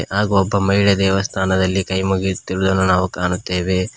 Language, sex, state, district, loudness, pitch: Kannada, male, Karnataka, Koppal, -18 LUFS, 95 Hz